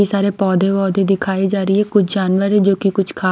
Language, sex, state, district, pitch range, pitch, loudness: Hindi, female, Himachal Pradesh, Shimla, 190-200 Hz, 195 Hz, -16 LUFS